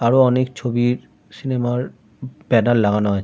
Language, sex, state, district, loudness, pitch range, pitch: Bengali, male, West Bengal, Kolkata, -19 LUFS, 115-130 Hz, 120 Hz